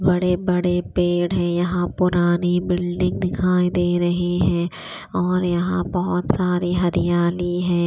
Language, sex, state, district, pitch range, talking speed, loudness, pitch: Hindi, female, Chandigarh, Chandigarh, 175-180 Hz, 130 wpm, -20 LUFS, 180 Hz